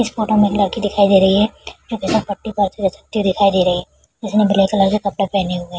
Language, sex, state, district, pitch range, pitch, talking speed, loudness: Hindi, female, Bihar, Kishanganj, 195-210 Hz, 200 Hz, 240 wpm, -16 LUFS